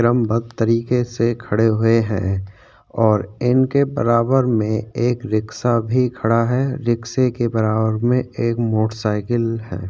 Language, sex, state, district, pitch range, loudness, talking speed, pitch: Hindi, male, Chhattisgarh, Sukma, 110-120 Hz, -19 LUFS, 140 wpm, 115 Hz